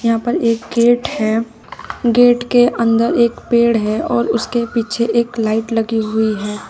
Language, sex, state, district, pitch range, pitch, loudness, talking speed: Hindi, female, Uttar Pradesh, Shamli, 220-235 Hz, 230 Hz, -15 LUFS, 170 wpm